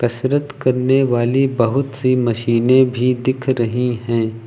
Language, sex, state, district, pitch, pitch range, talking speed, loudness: Hindi, male, Uttar Pradesh, Lucknow, 125 Hz, 120-130 Hz, 135 wpm, -17 LUFS